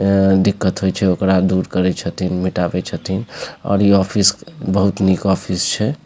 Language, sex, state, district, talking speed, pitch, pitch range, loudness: Maithili, male, Bihar, Supaul, 170 wpm, 95 Hz, 90-100 Hz, -17 LUFS